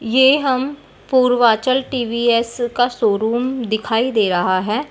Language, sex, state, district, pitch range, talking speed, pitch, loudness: Hindi, female, Uttar Pradesh, Deoria, 220-255 Hz, 120 wpm, 240 Hz, -17 LUFS